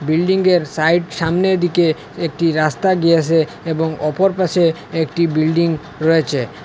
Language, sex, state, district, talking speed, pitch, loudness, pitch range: Bengali, male, Assam, Hailakandi, 125 wpm, 165 Hz, -16 LUFS, 155-175 Hz